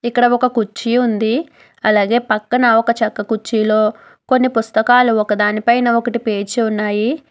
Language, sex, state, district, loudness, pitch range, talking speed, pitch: Telugu, female, Telangana, Hyderabad, -15 LUFS, 215-245 Hz, 130 wpm, 230 Hz